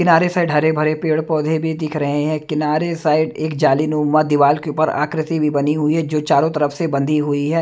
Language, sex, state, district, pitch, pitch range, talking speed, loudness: Hindi, male, Haryana, Jhajjar, 155 Hz, 150-160 Hz, 235 wpm, -17 LUFS